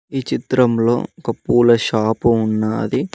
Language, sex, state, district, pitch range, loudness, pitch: Telugu, male, Telangana, Mahabubabad, 110-120 Hz, -17 LUFS, 115 Hz